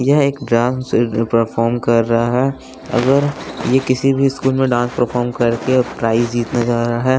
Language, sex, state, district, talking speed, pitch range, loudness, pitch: Hindi, male, Bihar, West Champaran, 185 wpm, 120-130 Hz, -16 LUFS, 120 Hz